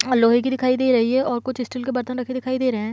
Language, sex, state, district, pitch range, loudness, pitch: Hindi, female, Bihar, Kishanganj, 245-255 Hz, -21 LUFS, 255 Hz